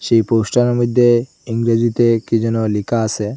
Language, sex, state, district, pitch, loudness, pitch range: Bengali, male, Assam, Hailakandi, 115 Hz, -16 LUFS, 115-120 Hz